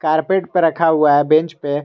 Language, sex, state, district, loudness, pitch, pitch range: Hindi, male, Jharkhand, Garhwa, -15 LUFS, 155 Hz, 150-170 Hz